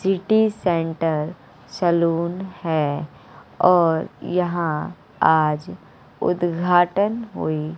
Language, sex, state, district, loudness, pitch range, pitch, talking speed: Hindi, female, Bihar, West Champaran, -21 LUFS, 160-180 Hz, 170 Hz, 70 wpm